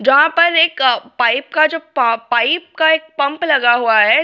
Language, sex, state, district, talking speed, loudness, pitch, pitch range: Hindi, female, Delhi, New Delhi, 185 wpm, -14 LUFS, 285 Hz, 240-320 Hz